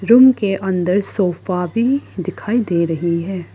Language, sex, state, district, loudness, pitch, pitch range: Hindi, female, Arunachal Pradesh, Lower Dibang Valley, -17 LUFS, 190 Hz, 180-215 Hz